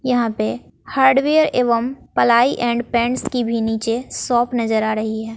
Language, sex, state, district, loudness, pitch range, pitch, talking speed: Hindi, female, Bihar, West Champaran, -18 LUFS, 225-250 Hz, 235 Hz, 165 wpm